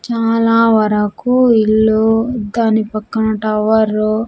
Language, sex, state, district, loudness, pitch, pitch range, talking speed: Telugu, female, Andhra Pradesh, Sri Satya Sai, -14 LUFS, 220 Hz, 215-230 Hz, 100 wpm